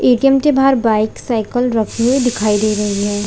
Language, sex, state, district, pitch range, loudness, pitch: Hindi, female, Chhattisgarh, Balrampur, 210-255 Hz, -15 LUFS, 230 Hz